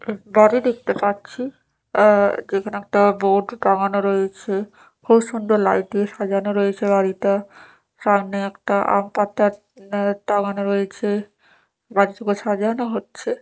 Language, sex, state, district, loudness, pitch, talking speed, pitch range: Bengali, female, Odisha, Nuapada, -20 LUFS, 205 Hz, 120 wpm, 200-215 Hz